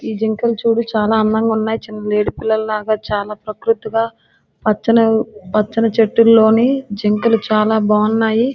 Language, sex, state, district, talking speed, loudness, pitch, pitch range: Telugu, female, Andhra Pradesh, Srikakulam, 105 wpm, -16 LUFS, 220 Hz, 215-225 Hz